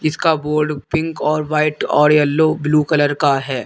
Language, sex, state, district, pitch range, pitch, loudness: Hindi, male, Uttar Pradesh, Lalitpur, 150-155 Hz, 150 Hz, -16 LUFS